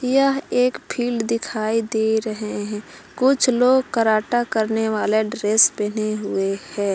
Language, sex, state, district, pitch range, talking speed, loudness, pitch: Hindi, female, Jharkhand, Palamu, 215-245 Hz, 140 wpm, -20 LUFS, 220 Hz